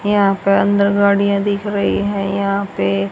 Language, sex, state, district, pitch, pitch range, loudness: Hindi, female, Haryana, Rohtak, 200 Hz, 195-200 Hz, -16 LUFS